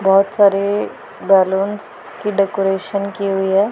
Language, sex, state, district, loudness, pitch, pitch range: Hindi, female, Punjab, Pathankot, -17 LUFS, 195 Hz, 195-200 Hz